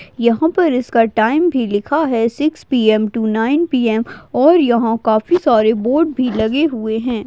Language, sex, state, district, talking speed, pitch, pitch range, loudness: Hindi, female, Maharashtra, Chandrapur, 175 wpm, 235 Hz, 225-295 Hz, -15 LUFS